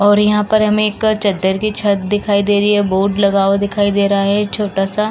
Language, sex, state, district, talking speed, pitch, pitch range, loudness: Hindi, female, Uttar Pradesh, Jalaun, 235 wpm, 205 Hz, 200-210 Hz, -14 LUFS